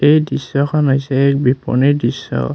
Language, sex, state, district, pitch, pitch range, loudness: Assamese, male, Assam, Kamrup Metropolitan, 140 Hz, 135-145 Hz, -15 LUFS